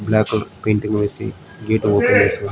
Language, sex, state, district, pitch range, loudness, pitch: Telugu, male, Andhra Pradesh, Srikakulam, 100-110 Hz, -18 LUFS, 105 Hz